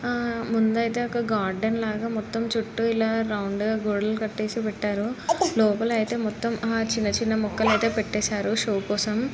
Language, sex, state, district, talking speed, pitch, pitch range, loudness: Telugu, female, Andhra Pradesh, Srikakulam, 140 wpm, 220 Hz, 215-230 Hz, -25 LUFS